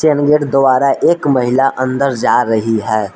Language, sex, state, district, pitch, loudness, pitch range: Hindi, male, Jharkhand, Palamu, 130 Hz, -13 LUFS, 115-140 Hz